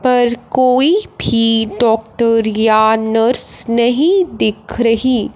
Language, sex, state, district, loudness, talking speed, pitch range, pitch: Hindi, male, Punjab, Fazilka, -13 LUFS, 100 wpm, 225-250 Hz, 230 Hz